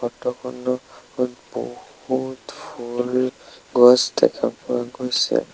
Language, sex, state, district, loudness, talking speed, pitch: Assamese, male, Assam, Sonitpur, -21 LUFS, 95 wpm, 125 Hz